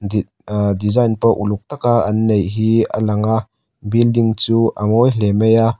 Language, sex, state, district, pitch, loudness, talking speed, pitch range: Mizo, male, Mizoram, Aizawl, 110 Hz, -16 LUFS, 175 wpm, 105-115 Hz